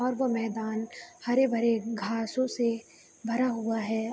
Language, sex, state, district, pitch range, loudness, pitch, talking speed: Hindi, female, Bihar, Begusarai, 225-245 Hz, -29 LUFS, 230 Hz, 130 wpm